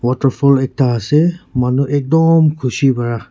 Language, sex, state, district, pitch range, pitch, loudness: Nagamese, male, Nagaland, Kohima, 125-150 Hz, 135 Hz, -14 LUFS